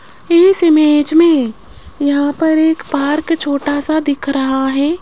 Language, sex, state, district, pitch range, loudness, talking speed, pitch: Hindi, female, Rajasthan, Jaipur, 285-320 Hz, -13 LUFS, 145 wpm, 295 Hz